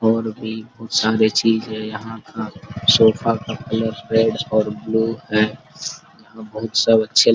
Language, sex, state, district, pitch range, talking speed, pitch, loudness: Hindi, male, Jharkhand, Sahebganj, 110-115 Hz, 155 wpm, 110 Hz, -19 LUFS